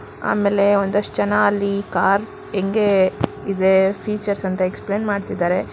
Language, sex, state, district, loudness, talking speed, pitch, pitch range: Kannada, female, Karnataka, Bangalore, -19 LUFS, 125 wpm, 200 Hz, 190-205 Hz